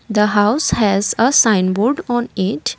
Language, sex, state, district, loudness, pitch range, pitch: English, female, Assam, Kamrup Metropolitan, -15 LUFS, 205-240 Hz, 215 Hz